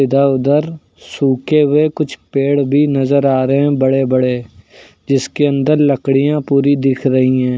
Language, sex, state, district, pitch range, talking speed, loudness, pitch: Hindi, male, Uttar Pradesh, Lucknow, 130-145 Hz, 160 wpm, -14 LUFS, 140 Hz